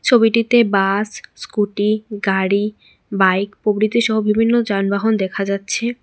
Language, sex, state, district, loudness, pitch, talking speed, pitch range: Bengali, female, Tripura, West Tripura, -17 LUFS, 210 Hz, 100 wpm, 200-225 Hz